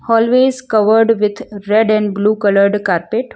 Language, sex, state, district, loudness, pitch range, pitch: English, female, Gujarat, Valsad, -13 LUFS, 205-230 Hz, 215 Hz